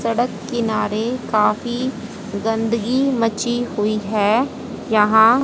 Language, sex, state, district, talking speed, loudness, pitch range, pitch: Hindi, female, Haryana, Rohtak, 90 wpm, -19 LUFS, 215-240 Hz, 225 Hz